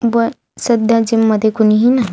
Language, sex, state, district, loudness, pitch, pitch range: Marathi, female, Maharashtra, Aurangabad, -13 LUFS, 225 Hz, 220-235 Hz